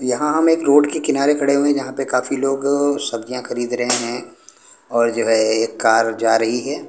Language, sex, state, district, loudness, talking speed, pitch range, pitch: Hindi, male, Punjab, Pathankot, -18 LUFS, 220 wpm, 115-145 Hz, 130 Hz